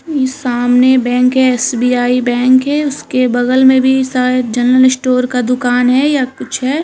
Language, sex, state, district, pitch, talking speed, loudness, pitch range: Hindi, female, Uttarakhand, Tehri Garhwal, 255 Hz, 165 wpm, -12 LUFS, 250-260 Hz